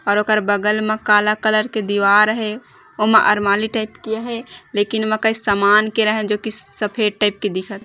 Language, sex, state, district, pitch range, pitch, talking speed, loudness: Chhattisgarhi, female, Chhattisgarh, Raigarh, 205-220 Hz, 215 Hz, 190 wpm, -17 LUFS